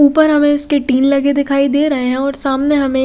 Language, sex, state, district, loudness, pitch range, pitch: Hindi, female, Odisha, Khordha, -13 LUFS, 270-290 Hz, 280 Hz